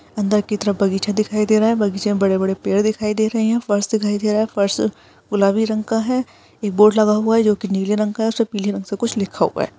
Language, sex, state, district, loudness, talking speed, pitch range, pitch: Hindi, female, Chhattisgarh, Korba, -18 LUFS, 265 wpm, 200-220 Hz, 210 Hz